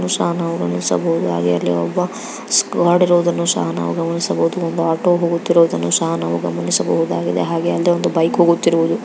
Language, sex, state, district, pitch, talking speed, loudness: Kannada, female, Karnataka, Raichur, 165 Hz, 140 wpm, -17 LUFS